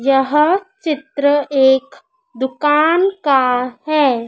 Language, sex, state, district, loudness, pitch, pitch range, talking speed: Hindi, female, Madhya Pradesh, Dhar, -15 LUFS, 285 Hz, 265-315 Hz, 85 wpm